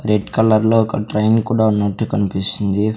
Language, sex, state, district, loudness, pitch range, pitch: Telugu, male, Andhra Pradesh, Sri Satya Sai, -17 LUFS, 105-110 Hz, 105 Hz